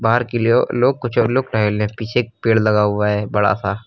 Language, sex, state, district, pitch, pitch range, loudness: Hindi, male, Uttar Pradesh, Lucknow, 110 Hz, 105-120 Hz, -17 LUFS